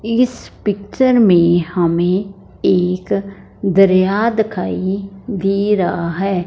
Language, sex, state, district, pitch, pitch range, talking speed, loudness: Hindi, female, Punjab, Fazilka, 195 Hz, 180-205 Hz, 95 wpm, -16 LUFS